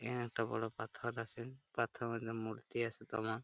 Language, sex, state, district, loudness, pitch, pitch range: Bengali, male, West Bengal, Paschim Medinipur, -42 LUFS, 115 Hz, 110-120 Hz